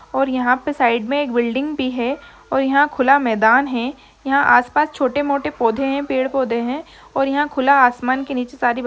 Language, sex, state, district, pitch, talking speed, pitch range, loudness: Hindi, female, Bihar, Sitamarhi, 265 Hz, 195 wpm, 250-280 Hz, -18 LUFS